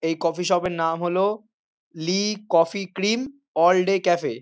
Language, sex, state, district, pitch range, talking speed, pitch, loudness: Bengali, male, West Bengal, North 24 Parganas, 170-205 Hz, 175 wpm, 185 Hz, -22 LUFS